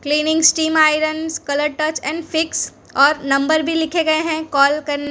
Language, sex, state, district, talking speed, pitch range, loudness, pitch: Hindi, female, Gujarat, Valsad, 190 wpm, 290-320 Hz, -17 LUFS, 310 Hz